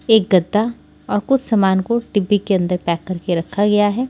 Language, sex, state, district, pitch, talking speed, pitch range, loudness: Hindi, female, Maharashtra, Washim, 205 Hz, 205 wpm, 185-220 Hz, -17 LUFS